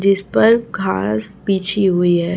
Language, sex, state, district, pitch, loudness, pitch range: Hindi, female, Chhattisgarh, Raipur, 185 Hz, -16 LUFS, 170-200 Hz